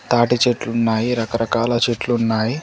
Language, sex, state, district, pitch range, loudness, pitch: Telugu, male, Telangana, Komaram Bheem, 115-120 Hz, -18 LUFS, 115 Hz